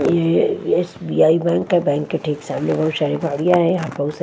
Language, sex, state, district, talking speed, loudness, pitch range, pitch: Hindi, female, Odisha, Nuapada, 210 wpm, -18 LUFS, 150-175 Hz, 165 Hz